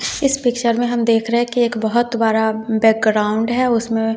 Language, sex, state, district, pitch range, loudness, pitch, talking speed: Hindi, female, Bihar, West Champaran, 220-240 Hz, -17 LUFS, 230 Hz, 200 wpm